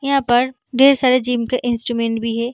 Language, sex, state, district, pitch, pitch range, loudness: Hindi, female, Bihar, Samastipur, 245 Hz, 235-260 Hz, -17 LUFS